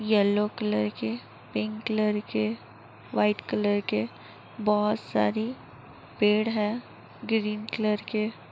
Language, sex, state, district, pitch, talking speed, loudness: Hindi, female, Uttar Pradesh, Jalaun, 210 Hz, 120 wpm, -28 LUFS